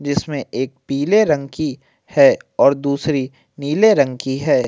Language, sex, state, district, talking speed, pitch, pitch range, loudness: Hindi, male, Uttar Pradesh, Jalaun, 155 wpm, 140 Hz, 135-150 Hz, -17 LUFS